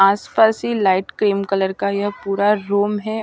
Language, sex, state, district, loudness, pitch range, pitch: Hindi, female, Punjab, Pathankot, -18 LUFS, 195-210 Hz, 205 Hz